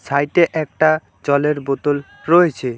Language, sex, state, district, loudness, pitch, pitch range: Bengali, male, West Bengal, Alipurduar, -17 LUFS, 145 Hz, 135-155 Hz